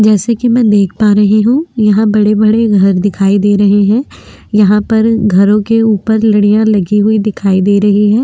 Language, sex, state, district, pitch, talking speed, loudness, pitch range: Hindi, female, Maharashtra, Aurangabad, 210 Hz, 195 wpm, -10 LUFS, 205-220 Hz